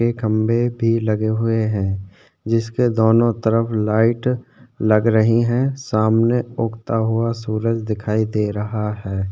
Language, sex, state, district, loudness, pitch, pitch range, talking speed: Hindi, male, Chhattisgarh, Sukma, -19 LUFS, 115 Hz, 110-115 Hz, 135 wpm